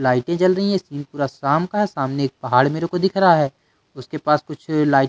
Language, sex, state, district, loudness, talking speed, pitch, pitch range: Hindi, male, Madhya Pradesh, Katni, -19 LUFS, 250 wpm, 150 Hz, 135-170 Hz